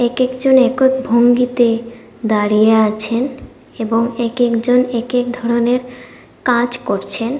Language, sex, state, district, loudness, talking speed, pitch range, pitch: Bengali, female, Tripura, West Tripura, -15 LUFS, 105 wpm, 230-250 Hz, 240 Hz